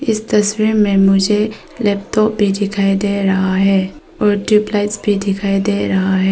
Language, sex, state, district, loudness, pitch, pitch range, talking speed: Hindi, female, Arunachal Pradesh, Papum Pare, -15 LUFS, 205 Hz, 195-210 Hz, 160 wpm